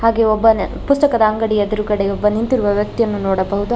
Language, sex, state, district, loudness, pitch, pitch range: Kannada, female, Karnataka, Bangalore, -16 LUFS, 215 Hz, 205-225 Hz